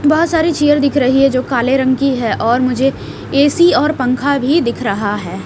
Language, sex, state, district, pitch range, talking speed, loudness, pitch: Hindi, female, Haryana, Rohtak, 250-295 Hz, 220 wpm, -14 LUFS, 270 Hz